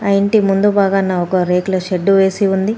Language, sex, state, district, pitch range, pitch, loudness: Telugu, female, Telangana, Komaram Bheem, 185-200 Hz, 195 Hz, -14 LUFS